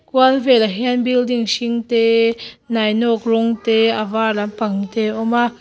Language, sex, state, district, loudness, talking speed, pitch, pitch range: Mizo, female, Mizoram, Aizawl, -17 LUFS, 160 wpm, 230 Hz, 220-240 Hz